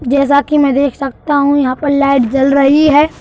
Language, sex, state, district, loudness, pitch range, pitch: Hindi, male, Madhya Pradesh, Bhopal, -11 LUFS, 275-290 Hz, 280 Hz